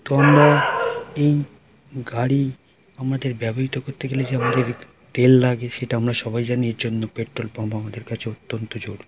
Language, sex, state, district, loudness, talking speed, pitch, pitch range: Bengali, male, West Bengal, Jhargram, -21 LUFS, 150 wpm, 125 Hz, 115-135 Hz